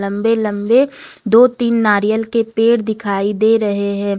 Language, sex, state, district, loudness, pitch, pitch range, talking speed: Hindi, female, Jharkhand, Ranchi, -15 LUFS, 220 Hz, 205-230 Hz, 160 wpm